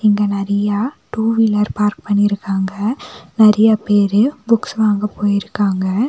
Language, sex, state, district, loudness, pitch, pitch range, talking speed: Tamil, female, Tamil Nadu, Nilgiris, -16 LUFS, 210 Hz, 200-220 Hz, 110 wpm